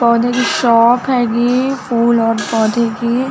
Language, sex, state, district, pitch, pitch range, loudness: Hindi, female, Chhattisgarh, Bilaspur, 235 Hz, 230-250 Hz, -14 LUFS